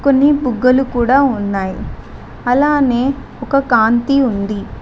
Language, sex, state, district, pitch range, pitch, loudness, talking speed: Telugu, female, Telangana, Mahabubabad, 235-275 Hz, 255 Hz, -14 LUFS, 100 wpm